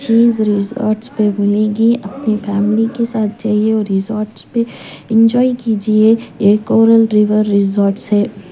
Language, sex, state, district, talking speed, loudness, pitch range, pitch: Hindi, female, Punjab, Pathankot, 135 wpm, -14 LUFS, 205-225 Hz, 215 Hz